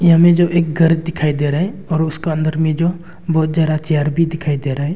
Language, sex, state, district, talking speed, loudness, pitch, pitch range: Hindi, male, Arunachal Pradesh, Longding, 240 wpm, -16 LUFS, 160 Hz, 155-170 Hz